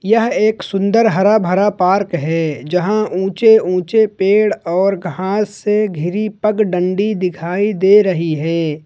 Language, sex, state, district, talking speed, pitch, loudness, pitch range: Hindi, male, Jharkhand, Ranchi, 135 wpm, 195 Hz, -15 LUFS, 180-215 Hz